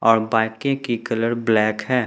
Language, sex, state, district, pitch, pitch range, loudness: Hindi, male, Jharkhand, Ranchi, 115 Hz, 110-120 Hz, -20 LUFS